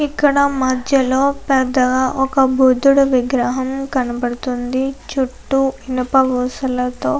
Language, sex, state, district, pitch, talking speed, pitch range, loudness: Telugu, female, Andhra Pradesh, Anantapur, 260 Hz, 85 wpm, 255-270 Hz, -17 LUFS